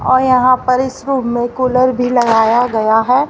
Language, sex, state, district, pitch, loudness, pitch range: Hindi, female, Haryana, Rohtak, 255 Hz, -13 LUFS, 240-255 Hz